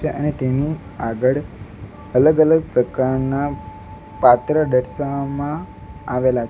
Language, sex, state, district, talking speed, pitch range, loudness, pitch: Gujarati, male, Gujarat, Valsad, 90 wpm, 105-145 Hz, -19 LUFS, 130 Hz